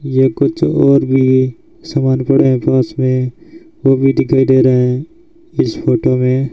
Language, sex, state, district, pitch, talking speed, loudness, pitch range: Hindi, male, Rajasthan, Bikaner, 130 Hz, 165 wpm, -13 LUFS, 130-140 Hz